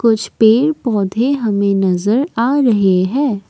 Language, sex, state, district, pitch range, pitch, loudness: Hindi, female, Assam, Kamrup Metropolitan, 200-255 Hz, 225 Hz, -14 LUFS